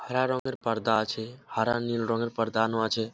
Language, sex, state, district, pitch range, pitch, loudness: Bengali, male, West Bengal, Jhargram, 110-120 Hz, 115 Hz, -28 LUFS